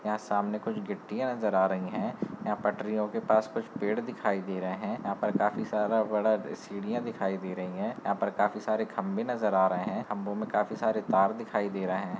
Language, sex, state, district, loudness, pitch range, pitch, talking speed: Hindi, male, West Bengal, Malda, -30 LUFS, 95-110 Hz, 105 Hz, 230 wpm